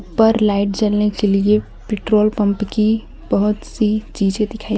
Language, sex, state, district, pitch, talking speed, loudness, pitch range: Hindi, female, Jharkhand, Garhwa, 210 Hz, 150 wpm, -17 LUFS, 205-215 Hz